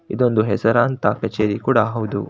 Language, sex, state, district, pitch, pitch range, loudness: Kannada, male, Karnataka, Shimoga, 110 Hz, 105-115 Hz, -19 LUFS